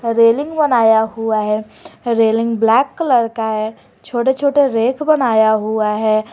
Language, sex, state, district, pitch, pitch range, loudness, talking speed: Hindi, female, Jharkhand, Garhwa, 225 Hz, 220-255 Hz, -15 LUFS, 140 wpm